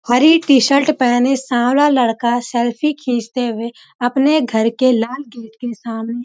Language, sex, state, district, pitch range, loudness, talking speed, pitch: Hindi, female, Uttarakhand, Uttarkashi, 235-270 Hz, -15 LUFS, 165 wpm, 245 Hz